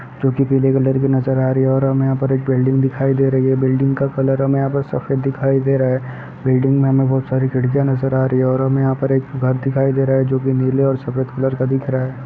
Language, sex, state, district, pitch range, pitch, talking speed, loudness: Hindi, male, Uttar Pradesh, Ghazipur, 130-135 Hz, 135 Hz, 285 wpm, -17 LUFS